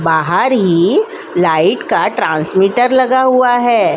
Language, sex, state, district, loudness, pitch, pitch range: Hindi, female, Uttar Pradesh, Jalaun, -12 LUFS, 245 Hz, 190-260 Hz